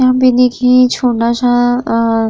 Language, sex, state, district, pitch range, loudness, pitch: Hindi, female, Uttar Pradesh, Muzaffarnagar, 235-250 Hz, -11 LUFS, 245 Hz